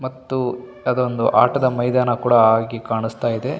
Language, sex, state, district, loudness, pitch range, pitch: Kannada, male, Karnataka, Bellary, -19 LUFS, 115-130 Hz, 125 Hz